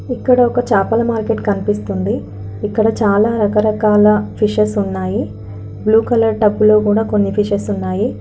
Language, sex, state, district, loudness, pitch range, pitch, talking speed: Telugu, female, Telangana, Karimnagar, -15 LUFS, 190-220 Hz, 210 Hz, 125 wpm